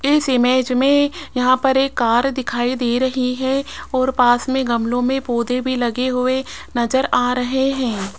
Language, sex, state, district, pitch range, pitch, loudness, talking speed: Hindi, female, Rajasthan, Jaipur, 245-265 Hz, 255 Hz, -18 LUFS, 175 wpm